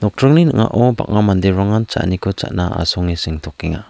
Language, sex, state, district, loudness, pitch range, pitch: Garo, male, Meghalaya, South Garo Hills, -16 LUFS, 90-115 Hz, 100 Hz